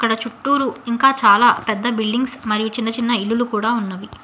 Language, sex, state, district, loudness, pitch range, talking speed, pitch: Telugu, female, Telangana, Hyderabad, -18 LUFS, 220-240 Hz, 170 wpm, 230 Hz